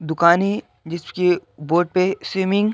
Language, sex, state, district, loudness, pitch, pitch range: Hindi, male, Madhya Pradesh, Bhopal, -20 LUFS, 180 Hz, 170-190 Hz